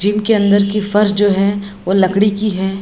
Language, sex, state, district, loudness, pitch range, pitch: Hindi, female, Bihar, Jamui, -14 LUFS, 195-210 Hz, 200 Hz